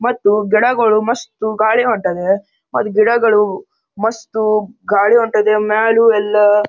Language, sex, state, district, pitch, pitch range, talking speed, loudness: Kannada, male, Karnataka, Gulbarga, 215 Hz, 210-230 Hz, 105 wpm, -14 LUFS